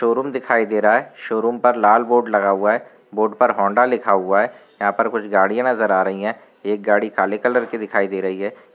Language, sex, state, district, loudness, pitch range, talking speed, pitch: Hindi, male, Uttar Pradesh, Varanasi, -18 LUFS, 100-115 Hz, 240 wpm, 105 Hz